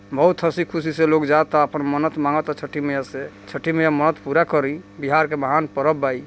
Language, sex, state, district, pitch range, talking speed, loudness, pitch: Bhojpuri, male, Bihar, East Champaran, 140-160 Hz, 220 wpm, -20 LUFS, 150 Hz